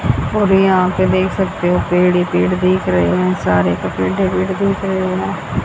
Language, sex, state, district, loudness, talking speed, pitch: Hindi, female, Haryana, Jhajjar, -15 LUFS, 150 wpm, 180 Hz